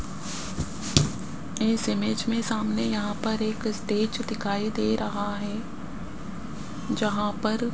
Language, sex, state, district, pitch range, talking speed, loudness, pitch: Hindi, male, Rajasthan, Jaipur, 205-225 Hz, 115 wpm, -28 LUFS, 215 Hz